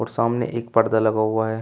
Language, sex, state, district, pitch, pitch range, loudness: Hindi, male, Uttar Pradesh, Shamli, 110 Hz, 110-115 Hz, -21 LUFS